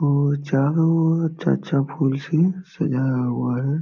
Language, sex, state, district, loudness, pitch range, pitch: Hindi, male, Bihar, Jamui, -21 LUFS, 135-165 Hz, 145 Hz